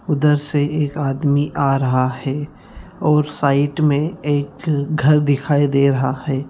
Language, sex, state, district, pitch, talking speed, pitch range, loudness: Hindi, male, Bihar, Jamui, 145 Hz, 150 wpm, 140-150 Hz, -18 LUFS